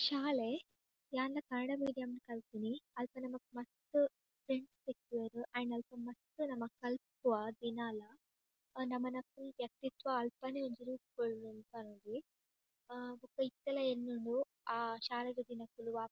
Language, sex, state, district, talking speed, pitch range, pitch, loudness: Tulu, female, Karnataka, Dakshina Kannada, 125 wpm, 235-265 Hz, 245 Hz, -42 LUFS